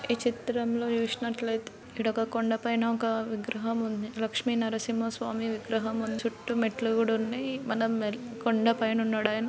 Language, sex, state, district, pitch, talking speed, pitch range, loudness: Telugu, female, Andhra Pradesh, Srikakulam, 225 Hz, 145 wpm, 225-235 Hz, -30 LUFS